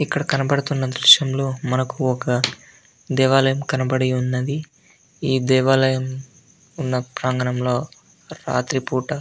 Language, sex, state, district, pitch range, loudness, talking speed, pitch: Telugu, male, Andhra Pradesh, Anantapur, 130-140 Hz, -20 LUFS, 100 wpm, 130 Hz